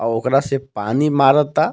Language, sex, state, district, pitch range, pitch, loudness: Bhojpuri, male, Jharkhand, Palamu, 125-145 Hz, 135 Hz, -17 LUFS